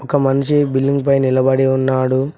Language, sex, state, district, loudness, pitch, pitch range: Telugu, male, Telangana, Mahabubabad, -15 LUFS, 135 Hz, 130-140 Hz